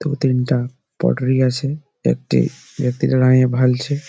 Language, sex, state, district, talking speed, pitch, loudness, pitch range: Bengali, male, West Bengal, Malda, 105 wpm, 130 Hz, -18 LUFS, 125-140 Hz